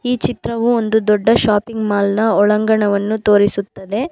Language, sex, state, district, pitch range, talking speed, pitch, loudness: Kannada, female, Karnataka, Bangalore, 205-225 Hz, 115 wpm, 215 Hz, -15 LUFS